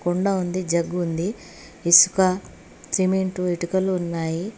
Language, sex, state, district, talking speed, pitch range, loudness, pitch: Telugu, female, Telangana, Hyderabad, 105 wpm, 170-190 Hz, -21 LUFS, 180 Hz